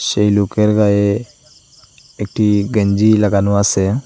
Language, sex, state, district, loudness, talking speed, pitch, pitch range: Bengali, male, Assam, Hailakandi, -14 LUFS, 105 wpm, 105 Hz, 100-105 Hz